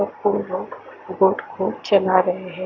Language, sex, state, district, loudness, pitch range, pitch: Hindi, female, Chandigarh, Chandigarh, -21 LUFS, 185-190 Hz, 185 Hz